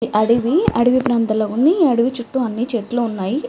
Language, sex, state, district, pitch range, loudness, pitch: Telugu, female, Andhra Pradesh, Chittoor, 225-255 Hz, -17 LUFS, 240 Hz